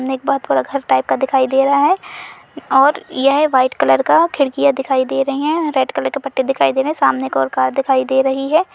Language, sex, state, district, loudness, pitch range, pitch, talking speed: Hindi, female, Uttar Pradesh, Budaun, -15 LUFS, 260-280 Hz, 270 Hz, 220 wpm